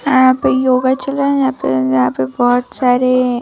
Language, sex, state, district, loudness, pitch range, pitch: Hindi, female, Bihar, Vaishali, -14 LUFS, 245-260 Hz, 255 Hz